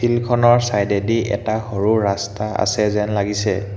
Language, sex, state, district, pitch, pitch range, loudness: Assamese, male, Assam, Hailakandi, 105 Hz, 100-115 Hz, -18 LUFS